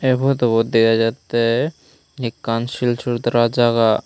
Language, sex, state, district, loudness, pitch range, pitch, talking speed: Chakma, male, Tripura, Unakoti, -18 LUFS, 115-125 Hz, 120 Hz, 105 wpm